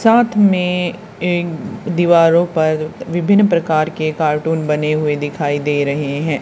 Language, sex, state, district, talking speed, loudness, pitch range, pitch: Hindi, female, Haryana, Charkhi Dadri, 140 wpm, -16 LUFS, 150-180 Hz, 165 Hz